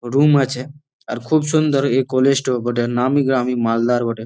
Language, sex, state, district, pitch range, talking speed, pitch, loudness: Bengali, male, West Bengal, Malda, 120-140 Hz, 185 wpm, 130 Hz, -17 LUFS